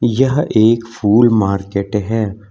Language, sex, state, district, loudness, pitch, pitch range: Hindi, male, Uttar Pradesh, Lucknow, -15 LUFS, 110 Hz, 105-115 Hz